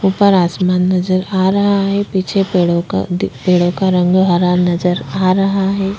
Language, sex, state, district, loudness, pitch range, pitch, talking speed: Hindi, female, Chhattisgarh, Korba, -14 LUFS, 180-195 Hz, 185 Hz, 190 wpm